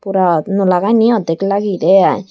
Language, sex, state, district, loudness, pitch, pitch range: Chakma, female, Tripura, Dhalai, -13 LUFS, 195 Hz, 180-200 Hz